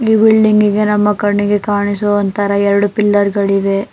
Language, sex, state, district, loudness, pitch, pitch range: Kannada, female, Karnataka, Bangalore, -13 LUFS, 205 Hz, 200-210 Hz